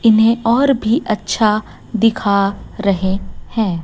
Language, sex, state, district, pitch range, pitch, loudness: Hindi, female, Chhattisgarh, Raipur, 200-230 Hz, 215 Hz, -16 LUFS